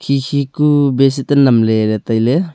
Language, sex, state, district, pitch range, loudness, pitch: Wancho, male, Arunachal Pradesh, Longding, 115-140 Hz, -13 LUFS, 135 Hz